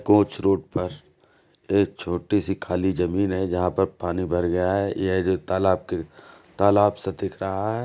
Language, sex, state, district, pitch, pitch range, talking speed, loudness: Hindi, male, Uttar Pradesh, Jalaun, 95 Hz, 90-100 Hz, 185 wpm, -24 LUFS